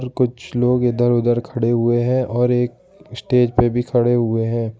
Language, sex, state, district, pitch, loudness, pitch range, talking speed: Hindi, male, Jharkhand, Ranchi, 120 Hz, -18 LUFS, 120-125 Hz, 190 wpm